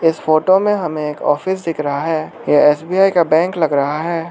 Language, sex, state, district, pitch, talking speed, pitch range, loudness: Hindi, male, Arunachal Pradesh, Lower Dibang Valley, 160 Hz, 225 wpm, 150-175 Hz, -16 LUFS